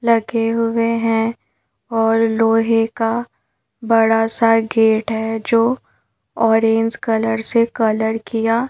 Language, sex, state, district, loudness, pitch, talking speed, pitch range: Hindi, female, Madhya Pradesh, Bhopal, -17 LUFS, 225 Hz, 110 wpm, 225-230 Hz